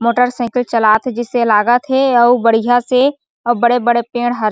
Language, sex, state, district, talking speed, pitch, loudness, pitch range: Chhattisgarhi, female, Chhattisgarh, Sarguja, 170 wpm, 240 Hz, -14 LUFS, 235-250 Hz